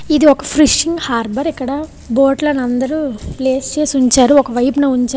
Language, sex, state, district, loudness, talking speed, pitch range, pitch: Telugu, female, Andhra Pradesh, Visakhapatnam, -14 LUFS, 140 wpm, 255-295 Hz, 270 Hz